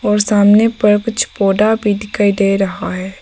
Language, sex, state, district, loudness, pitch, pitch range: Hindi, female, Arunachal Pradesh, Papum Pare, -14 LUFS, 205 Hz, 195-215 Hz